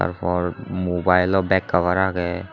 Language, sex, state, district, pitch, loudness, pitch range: Chakma, male, Tripura, Unakoti, 90 Hz, -21 LUFS, 90-95 Hz